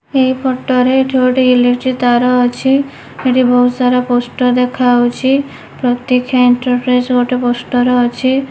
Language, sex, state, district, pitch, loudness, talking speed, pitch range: Odia, female, Odisha, Nuapada, 250 Hz, -13 LUFS, 120 wpm, 245-260 Hz